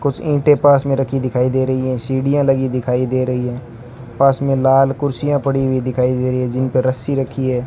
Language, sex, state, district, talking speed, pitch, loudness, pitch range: Hindi, male, Rajasthan, Bikaner, 225 wpm, 130 Hz, -17 LUFS, 125-135 Hz